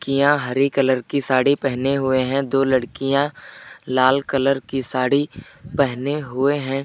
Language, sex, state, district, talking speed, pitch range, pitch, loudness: Hindi, male, Uttar Pradesh, Lucknow, 140 wpm, 130-140 Hz, 135 Hz, -20 LUFS